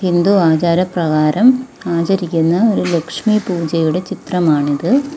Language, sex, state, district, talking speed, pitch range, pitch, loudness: Malayalam, female, Kerala, Kollam, 95 wpm, 165-200 Hz, 175 Hz, -15 LUFS